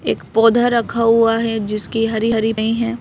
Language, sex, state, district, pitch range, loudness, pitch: Hindi, female, Madhya Pradesh, Bhopal, 220-230 Hz, -16 LUFS, 225 Hz